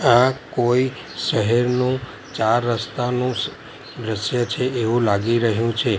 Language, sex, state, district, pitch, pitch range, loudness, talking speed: Gujarati, male, Gujarat, Valsad, 120 Hz, 115-125 Hz, -21 LUFS, 130 wpm